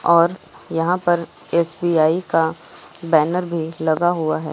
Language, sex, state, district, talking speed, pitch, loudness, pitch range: Hindi, female, Uttar Pradesh, Lucknow, 130 wpm, 170 Hz, -19 LUFS, 160-175 Hz